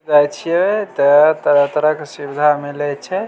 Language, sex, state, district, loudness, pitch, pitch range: Maithili, male, Bihar, Samastipur, -15 LUFS, 150 Hz, 145-160 Hz